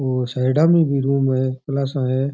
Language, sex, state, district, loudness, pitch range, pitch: Rajasthani, male, Rajasthan, Churu, -19 LUFS, 130-140 Hz, 135 Hz